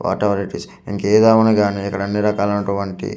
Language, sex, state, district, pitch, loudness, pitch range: Telugu, male, Andhra Pradesh, Manyam, 100 Hz, -17 LUFS, 100-105 Hz